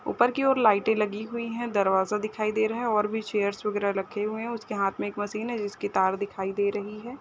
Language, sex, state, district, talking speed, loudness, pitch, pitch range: Hindi, female, Chhattisgarh, Bilaspur, 260 wpm, -27 LUFS, 210 Hz, 200-225 Hz